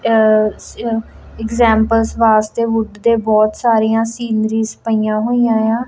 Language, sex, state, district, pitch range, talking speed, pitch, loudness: Punjabi, female, Punjab, Kapurthala, 220-230 Hz, 100 wpm, 225 Hz, -15 LUFS